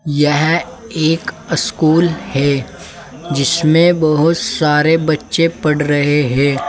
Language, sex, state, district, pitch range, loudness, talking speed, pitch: Hindi, male, Uttar Pradesh, Saharanpur, 145-165 Hz, -14 LUFS, 100 wpm, 155 Hz